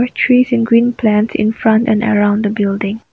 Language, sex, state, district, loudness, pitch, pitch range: English, female, Nagaland, Kohima, -13 LUFS, 220 Hz, 210-235 Hz